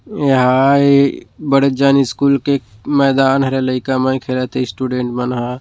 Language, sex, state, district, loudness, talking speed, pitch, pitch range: Chhattisgarhi, male, Chhattisgarh, Rajnandgaon, -15 LUFS, 150 wpm, 135 Hz, 130-140 Hz